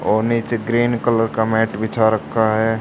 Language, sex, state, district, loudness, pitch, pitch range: Hindi, male, Haryana, Charkhi Dadri, -18 LUFS, 115 Hz, 110-115 Hz